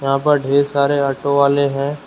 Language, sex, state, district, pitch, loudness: Hindi, male, Uttar Pradesh, Lucknow, 140 Hz, -16 LUFS